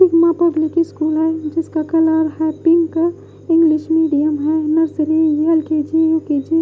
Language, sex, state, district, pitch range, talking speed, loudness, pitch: Hindi, female, Odisha, Khordha, 310-330 Hz, 135 wpm, -16 LUFS, 320 Hz